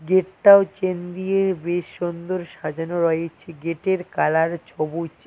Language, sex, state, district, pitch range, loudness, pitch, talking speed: Bengali, male, West Bengal, Cooch Behar, 165-185 Hz, -21 LUFS, 175 Hz, 125 wpm